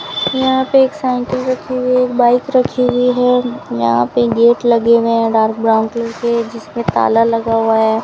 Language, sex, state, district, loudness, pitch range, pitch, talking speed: Hindi, female, Rajasthan, Bikaner, -14 LUFS, 230-255 Hz, 235 Hz, 200 wpm